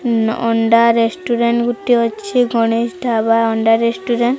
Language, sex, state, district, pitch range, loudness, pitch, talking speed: Odia, female, Odisha, Sambalpur, 225-235 Hz, -15 LUFS, 230 Hz, 150 wpm